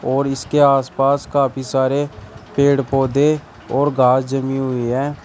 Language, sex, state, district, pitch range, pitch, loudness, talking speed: Hindi, male, Uttar Pradesh, Shamli, 130-140 Hz, 135 Hz, -17 LUFS, 135 wpm